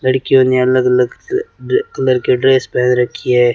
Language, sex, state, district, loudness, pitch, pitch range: Hindi, male, Rajasthan, Bikaner, -14 LUFS, 130 Hz, 125-135 Hz